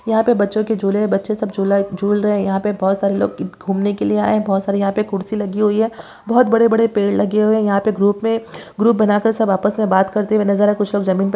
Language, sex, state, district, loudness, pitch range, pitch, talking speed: Hindi, female, Bihar, Saharsa, -17 LUFS, 195-215 Hz, 205 Hz, 290 wpm